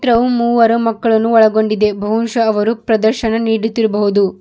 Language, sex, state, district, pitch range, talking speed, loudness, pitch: Kannada, female, Karnataka, Bidar, 215-230 Hz, 110 wpm, -14 LUFS, 225 Hz